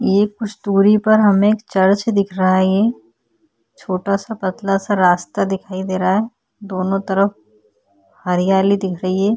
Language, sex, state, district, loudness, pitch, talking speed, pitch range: Hindi, female, Uttarakhand, Tehri Garhwal, -17 LUFS, 195 Hz, 155 wpm, 185-205 Hz